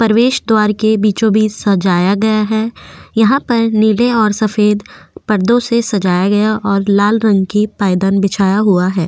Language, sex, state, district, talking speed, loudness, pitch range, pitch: Hindi, female, Goa, North and South Goa, 160 wpm, -13 LUFS, 200-220 Hz, 215 Hz